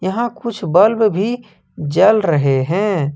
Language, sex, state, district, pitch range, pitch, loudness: Hindi, male, Jharkhand, Ranchi, 160-220 Hz, 195 Hz, -15 LUFS